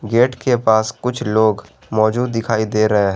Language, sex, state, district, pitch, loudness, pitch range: Hindi, male, Jharkhand, Garhwa, 110 Hz, -17 LUFS, 110-120 Hz